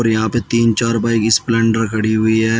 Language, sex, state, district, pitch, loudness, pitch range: Hindi, male, Uttar Pradesh, Shamli, 115 Hz, -15 LUFS, 110-115 Hz